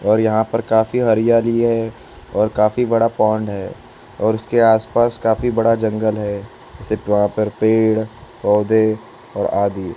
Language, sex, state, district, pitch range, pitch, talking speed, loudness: Hindi, male, Maharashtra, Gondia, 105-115 Hz, 110 Hz, 165 wpm, -17 LUFS